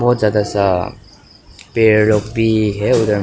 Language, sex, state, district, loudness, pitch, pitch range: Hindi, male, Nagaland, Kohima, -15 LUFS, 105 Hz, 105-110 Hz